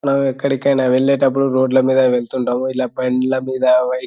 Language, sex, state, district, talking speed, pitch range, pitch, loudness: Telugu, male, Telangana, Nalgonda, 150 wpm, 125-135 Hz, 130 Hz, -16 LUFS